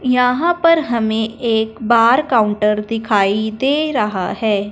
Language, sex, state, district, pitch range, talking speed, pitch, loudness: Hindi, female, Punjab, Fazilka, 210-255 Hz, 125 wpm, 225 Hz, -16 LUFS